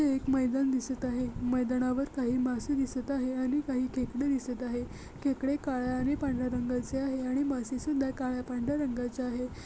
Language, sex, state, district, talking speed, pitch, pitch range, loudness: Marathi, female, Maharashtra, Chandrapur, 170 wpm, 255 Hz, 250-270 Hz, -32 LUFS